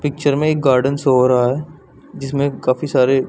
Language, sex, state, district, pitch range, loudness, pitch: Hindi, male, Chhattisgarh, Bilaspur, 130-145 Hz, -16 LUFS, 135 Hz